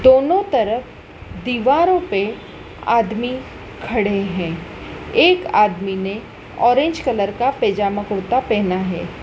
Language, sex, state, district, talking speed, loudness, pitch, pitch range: Hindi, female, Madhya Pradesh, Dhar, 110 wpm, -18 LUFS, 220 Hz, 195-260 Hz